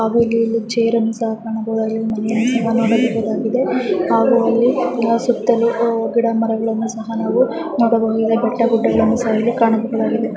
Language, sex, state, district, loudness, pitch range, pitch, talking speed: Kannada, female, Karnataka, Chamarajanagar, -17 LUFS, 225-235 Hz, 230 Hz, 135 wpm